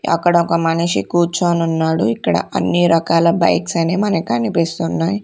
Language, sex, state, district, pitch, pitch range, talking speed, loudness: Telugu, female, Andhra Pradesh, Sri Satya Sai, 170 Hz, 165-175 Hz, 115 wpm, -16 LUFS